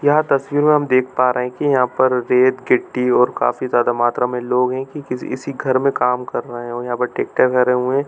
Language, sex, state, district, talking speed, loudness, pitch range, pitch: Hindi, male, Chhattisgarh, Bilaspur, 250 wpm, -18 LUFS, 125-135 Hz, 125 Hz